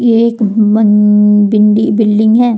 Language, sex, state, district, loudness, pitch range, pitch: Hindi, female, Jharkhand, Deoghar, -9 LUFS, 210-225 Hz, 215 Hz